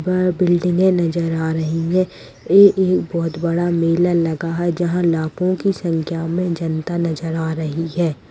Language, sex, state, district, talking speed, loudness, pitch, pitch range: Hindi, female, Bihar, Purnia, 160 wpm, -18 LUFS, 170 Hz, 165-180 Hz